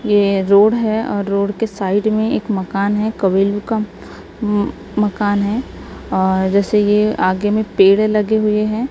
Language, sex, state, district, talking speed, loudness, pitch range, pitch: Hindi, female, Maharashtra, Gondia, 160 wpm, -16 LUFS, 200-215 Hz, 210 Hz